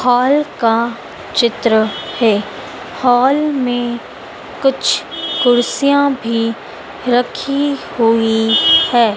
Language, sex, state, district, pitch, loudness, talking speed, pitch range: Hindi, female, Madhya Pradesh, Dhar, 245 Hz, -15 LUFS, 80 wpm, 230-270 Hz